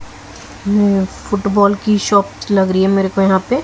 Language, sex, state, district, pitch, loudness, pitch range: Hindi, female, Haryana, Jhajjar, 195 Hz, -15 LUFS, 190-205 Hz